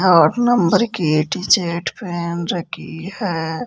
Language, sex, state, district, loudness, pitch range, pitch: Hindi, male, Rajasthan, Jaipur, -18 LUFS, 165-190 Hz, 175 Hz